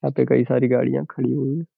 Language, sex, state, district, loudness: Hindi, male, Uttar Pradesh, Gorakhpur, -20 LUFS